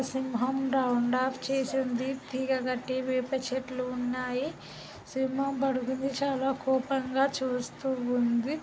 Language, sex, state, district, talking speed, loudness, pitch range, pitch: Telugu, male, Andhra Pradesh, Guntur, 90 wpm, -30 LUFS, 255-270 Hz, 260 Hz